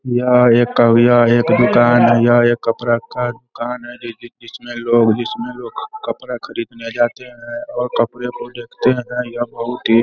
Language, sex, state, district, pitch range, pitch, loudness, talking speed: Hindi, male, Bihar, Sitamarhi, 120-125 Hz, 120 Hz, -16 LUFS, 180 wpm